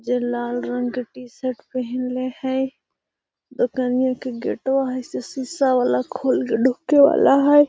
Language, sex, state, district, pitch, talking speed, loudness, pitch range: Magahi, female, Bihar, Gaya, 255 Hz, 165 wpm, -21 LUFS, 245-265 Hz